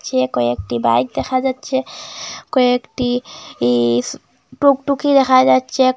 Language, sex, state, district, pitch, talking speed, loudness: Bengali, female, Assam, Hailakandi, 245 Hz, 110 wpm, -16 LUFS